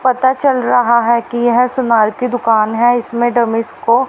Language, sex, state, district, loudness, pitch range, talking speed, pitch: Hindi, female, Haryana, Rohtak, -13 LUFS, 235-250 Hz, 190 wpm, 240 Hz